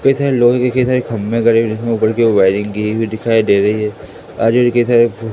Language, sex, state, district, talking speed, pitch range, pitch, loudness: Hindi, male, Madhya Pradesh, Katni, 270 wpm, 110-120 Hz, 115 Hz, -14 LUFS